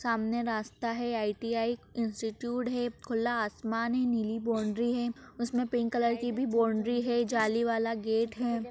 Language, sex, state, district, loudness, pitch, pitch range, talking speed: Hindi, female, Bihar, Jahanabad, -31 LUFS, 235 Hz, 225-240 Hz, 160 wpm